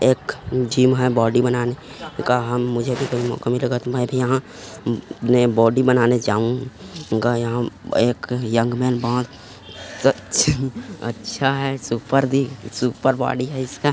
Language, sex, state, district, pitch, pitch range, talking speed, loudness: Hindi, male, Chhattisgarh, Korba, 125 Hz, 120-130 Hz, 140 wpm, -20 LUFS